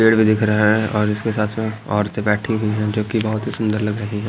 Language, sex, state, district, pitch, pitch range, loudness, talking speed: Hindi, male, Haryana, Jhajjar, 105 Hz, 105-110 Hz, -19 LUFS, 265 wpm